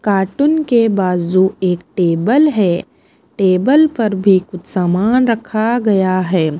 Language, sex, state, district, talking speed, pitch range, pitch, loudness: Hindi, female, Punjab, Pathankot, 125 wpm, 185-230 Hz, 195 Hz, -14 LUFS